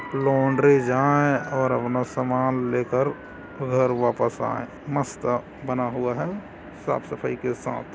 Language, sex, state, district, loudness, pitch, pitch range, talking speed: Chhattisgarhi, male, Chhattisgarh, Korba, -24 LUFS, 130 Hz, 125-135 Hz, 120 wpm